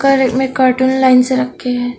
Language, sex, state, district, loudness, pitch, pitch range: Hindi, female, Arunachal Pradesh, Longding, -13 LUFS, 260 Hz, 250-265 Hz